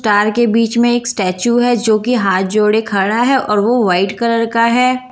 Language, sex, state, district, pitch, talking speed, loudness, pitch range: Hindi, female, Bihar, Katihar, 230 Hz, 225 wpm, -13 LUFS, 210-240 Hz